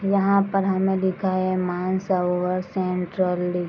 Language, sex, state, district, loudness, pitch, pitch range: Hindi, female, Bihar, East Champaran, -23 LUFS, 185 Hz, 180-190 Hz